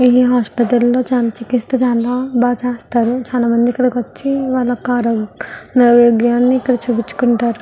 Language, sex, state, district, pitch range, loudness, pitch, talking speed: Telugu, female, Andhra Pradesh, Visakhapatnam, 235-250 Hz, -15 LUFS, 245 Hz, 125 wpm